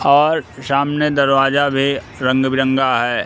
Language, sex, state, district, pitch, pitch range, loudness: Hindi, male, Madhya Pradesh, Katni, 135 Hz, 130-140 Hz, -16 LUFS